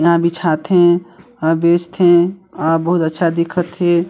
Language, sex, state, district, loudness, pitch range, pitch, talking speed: Chhattisgarhi, male, Chhattisgarh, Sarguja, -15 LUFS, 165-175 Hz, 170 Hz, 130 wpm